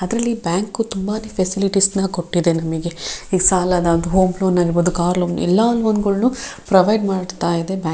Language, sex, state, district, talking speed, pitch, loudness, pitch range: Kannada, female, Karnataka, Shimoga, 150 wpm, 185 Hz, -18 LUFS, 175-205 Hz